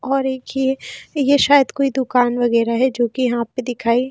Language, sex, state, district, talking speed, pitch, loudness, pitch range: Hindi, female, Himachal Pradesh, Shimla, 190 wpm, 260 Hz, -18 LUFS, 240-270 Hz